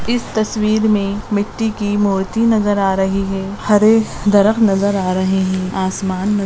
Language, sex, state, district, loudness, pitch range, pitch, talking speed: Hindi, female, Karnataka, Dakshina Kannada, -16 LUFS, 195-215 Hz, 205 Hz, 185 wpm